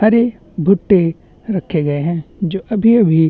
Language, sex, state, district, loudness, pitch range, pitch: Hindi, male, Chhattisgarh, Bastar, -16 LUFS, 165-215 Hz, 185 Hz